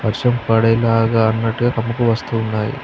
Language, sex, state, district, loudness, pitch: Telugu, male, Andhra Pradesh, Srikakulam, -17 LUFS, 115 Hz